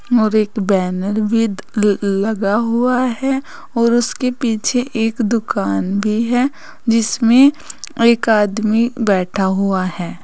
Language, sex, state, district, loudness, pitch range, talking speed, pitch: Hindi, female, Uttar Pradesh, Saharanpur, -16 LUFS, 200-240 Hz, 115 wpm, 225 Hz